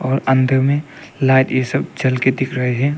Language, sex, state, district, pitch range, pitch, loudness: Hindi, male, Arunachal Pradesh, Papum Pare, 130-140 Hz, 130 Hz, -17 LUFS